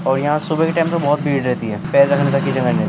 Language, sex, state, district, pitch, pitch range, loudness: Hindi, male, Uttar Pradesh, Muzaffarnagar, 150 Hz, 140-165 Hz, -17 LUFS